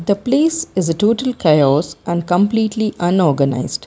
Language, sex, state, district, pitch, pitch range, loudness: English, female, Karnataka, Bangalore, 185 Hz, 160-220 Hz, -16 LUFS